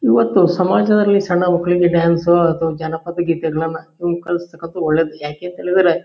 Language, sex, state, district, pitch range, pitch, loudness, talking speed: Kannada, male, Karnataka, Shimoga, 160-175 Hz, 170 Hz, -17 LUFS, 150 wpm